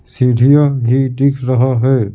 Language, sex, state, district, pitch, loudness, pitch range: Hindi, male, Bihar, Patna, 130 Hz, -13 LUFS, 125-135 Hz